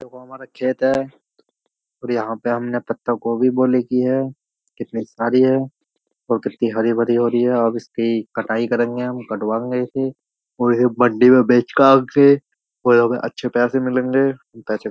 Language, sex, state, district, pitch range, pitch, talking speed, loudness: Hindi, male, Uttar Pradesh, Jyotiba Phule Nagar, 115-130 Hz, 125 Hz, 185 wpm, -18 LUFS